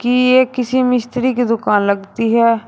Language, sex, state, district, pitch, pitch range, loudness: Hindi, male, Uttar Pradesh, Shamli, 240 Hz, 230-250 Hz, -15 LUFS